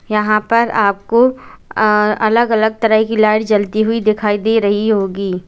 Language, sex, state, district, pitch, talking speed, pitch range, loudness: Hindi, female, Uttar Pradesh, Lalitpur, 215 Hz, 155 wpm, 210-225 Hz, -14 LUFS